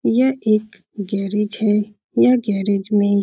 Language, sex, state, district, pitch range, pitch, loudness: Hindi, female, Uttar Pradesh, Etah, 200-215 Hz, 210 Hz, -19 LUFS